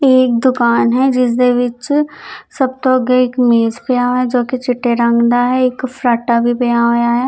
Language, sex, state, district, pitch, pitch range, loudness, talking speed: Punjabi, female, Chandigarh, Chandigarh, 245 Hz, 235-255 Hz, -14 LUFS, 205 wpm